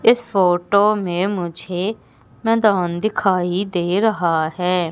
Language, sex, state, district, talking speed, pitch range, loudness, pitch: Hindi, female, Madhya Pradesh, Umaria, 110 wpm, 175-215 Hz, -19 LUFS, 185 Hz